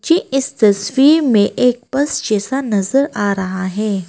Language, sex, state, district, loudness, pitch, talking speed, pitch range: Hindi, female, Arunachal Pradesh, Papum Pare, -15 LUFS, 235 Hz, 160 wpm, 205-275 Hz